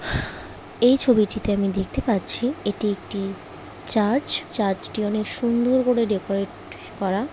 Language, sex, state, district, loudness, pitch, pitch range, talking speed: Bengali, female, West Bengal, Paschim Medinipur, -21 LUFS, 210 Hz, 195-235 Hz, 125 wpm